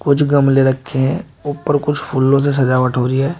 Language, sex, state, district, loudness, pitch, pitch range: Hindi, male, Uttar Pradesh, Shamli, -15 LUFS, 140 Hz, 130-145 Hz